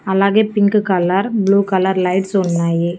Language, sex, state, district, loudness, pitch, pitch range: Telugu, female, Andhra Pradesh, Annamaya, -15 LUFS, 190 Hz, 180-200 Hz